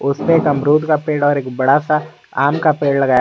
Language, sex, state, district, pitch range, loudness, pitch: Hindi, male, Jharkhand, Garhwa, 140-155 Hz, -15 LUFS, 145 Hz